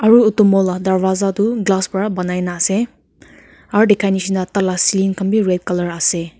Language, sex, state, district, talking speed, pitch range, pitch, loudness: Nagamese, female, Nagaland, Kohima, 205 wpm, 180-210 Hz, 195 Hz, -16 LUFS